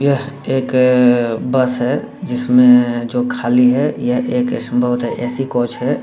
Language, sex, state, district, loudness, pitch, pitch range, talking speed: Hindi, male, Bihar, Saran, -15 LUFS, 125 Hz, 120-135 Hz, 140 wpm